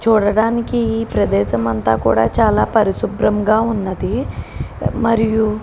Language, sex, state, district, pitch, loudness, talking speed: Telugu, female, Telangana, Karimnagar, 215 Hz, -16 LUFS, 115 wpm